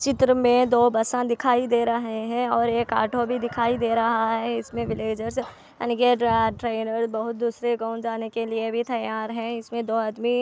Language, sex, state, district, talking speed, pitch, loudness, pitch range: Hindi, female, Andhra Pradesh, Anantapur, 180 wpm, 235 Hz, -24 LUFS, 225-240 Hz